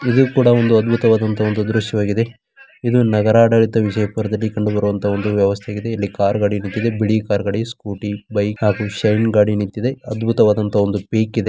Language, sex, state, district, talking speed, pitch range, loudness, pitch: Kannada, male, Karnataka, Bijapur, 135 wpm, 105-115 Hz, -17 LUFS, 110 Hz